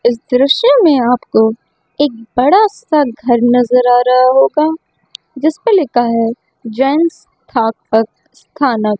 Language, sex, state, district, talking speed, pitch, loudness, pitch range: Hindi, female, Chandigarh, Chandigarh, 115 wpm, 250 Hz, -12 LUFS, 230-300 Hz